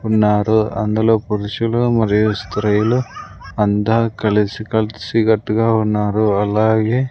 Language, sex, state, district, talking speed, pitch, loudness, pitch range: Telugu, male, Andhra Pradesh, Sri Satya Sai, 85 wpm, 110 Hz, -17 LUFS, 105-110 Hz